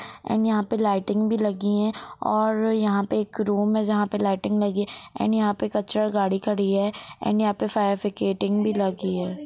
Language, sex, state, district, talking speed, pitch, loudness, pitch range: Hindi, female, Bihar, Gopalganj, 210 wpm, 210 Hz, -24 LUFS, 200-215 Hz